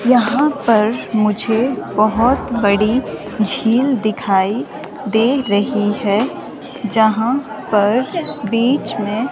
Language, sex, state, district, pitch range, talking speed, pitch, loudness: Hindi, female, Himachal Pradesh, Shimla, 210-255 Hz, 90 wpm, 225 Hz, -16 LUFS